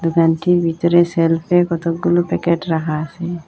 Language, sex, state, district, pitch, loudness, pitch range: Bengali, female, Assam, Hailakandi, 170 Hz, -17 LUFS, 165-175 Hz